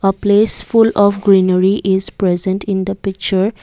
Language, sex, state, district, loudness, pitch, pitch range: English, female, Assam, Kamrup Metropolitan, -14 LUFS, 195 Hz, 190-205 Hz